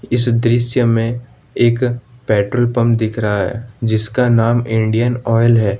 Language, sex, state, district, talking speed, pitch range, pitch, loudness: Hindi, male, Jharkhand, Ranchi, 145 wpm, 110-120 Hz, 115 Hz, -15 LUFS